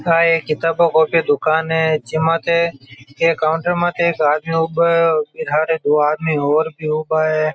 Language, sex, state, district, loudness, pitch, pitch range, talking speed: Marwari, male, Rajasthan, Nagaur, -17 LUFS, 160 Hz, 155-165 Hz, 175 wpm